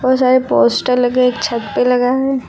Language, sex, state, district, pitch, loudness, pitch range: Hindi, female, Uttar Pradesh, Lucknow, 250 Hz, -14 LUFS, 245-260 Hz